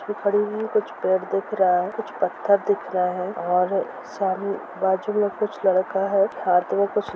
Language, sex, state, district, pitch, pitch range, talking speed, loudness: Hindi, female, Jharkhand, Sahebganj, 195 Hz, 185-205 Hz, 200 wpm, -23 LUFS